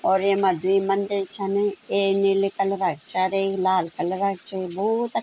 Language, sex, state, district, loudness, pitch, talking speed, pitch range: Garhwali, female, Uttarakhand, Tehri Garhwal, -23 LUFS, 195 Hz, 220 wpm, 185-195 Hz